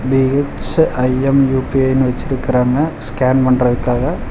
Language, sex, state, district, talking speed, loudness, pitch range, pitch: Tamil, male, Tamil Nadu, Chennai, 70 wpm, -15 LUFS, 125-135 Hz, 130 Hz